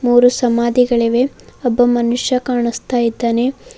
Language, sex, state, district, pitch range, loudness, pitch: Kannada, female, Karnataka, Bidar, 235-250 Hz, -15 LUFS, 245 Hz